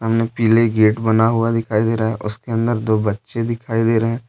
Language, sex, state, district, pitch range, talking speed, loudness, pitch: Hindi, male, Jharkhand, Deoghar, 110-115 Hz, 240 wpm, -18 LUFS, 115 Hz